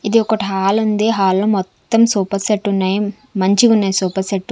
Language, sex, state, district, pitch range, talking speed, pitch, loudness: Telugu, female, Andhra Pradesh, Sri Satya Sai, 190-215 Hz, 145 wpm, 200 Hz, -16 LUFS